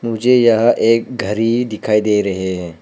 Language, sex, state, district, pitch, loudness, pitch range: Hindi, male, Arunachal Pradesh, Papum Pare, 110 Hz, -15 LUFS, 105-120 Hz